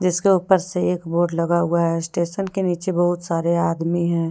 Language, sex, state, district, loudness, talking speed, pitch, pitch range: Hindi, female, Jharkhand, Deoghar, -20 LUFS, 210 wpm, 170 Hz, 170-180 Hz